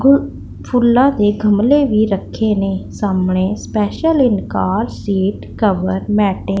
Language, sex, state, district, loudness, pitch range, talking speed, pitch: Punjabi, female, Punjab, Pathankot, -16 LUFS, 195-240 Hz, 125 wpm, 210 Hz